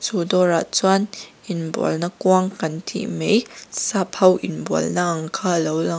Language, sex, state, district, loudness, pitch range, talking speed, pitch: Mizo, female, Mizoram, Aizawl, -21 LUFS, 165-185 Hz, 160 wpm, 175 Hz